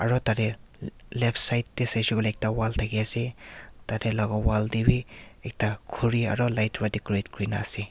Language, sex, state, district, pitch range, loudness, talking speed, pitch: Nagamese, male, Nagaland, Kohima, 105-115 Hz, -21 LUFS, 195 wpm, 110 Hz